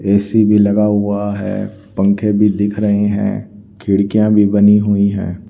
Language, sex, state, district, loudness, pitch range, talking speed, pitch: Hindi, male, Haryana, Rohtak, -14 LUFS, 100-105 Hz, 165 wpm, 105 Hz